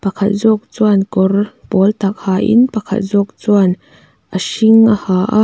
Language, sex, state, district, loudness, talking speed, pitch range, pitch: Mizo, female, Mizoram, Aizawl, -14 LUFS, 155 wpm, 195-215 Hz, 205 Hz